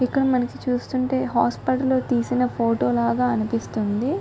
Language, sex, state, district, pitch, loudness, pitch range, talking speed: Telugu, female, Andhra Pradesh, Guntur, 250 Hz, -22 LUFS, 230-255 Hz, 130 wpm